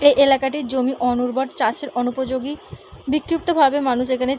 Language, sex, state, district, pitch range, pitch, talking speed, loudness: Bengali, female, West Bengal, Purulia, 255-285 Hz, 265 Hz, 150 wpm, -20 LUFS